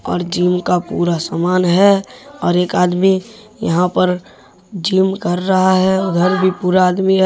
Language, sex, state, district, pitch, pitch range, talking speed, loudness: Hindi, male, Jharkhand, Deoghar, 185 Hz, 180-190 Hz, 165 wpm, -15 LUFS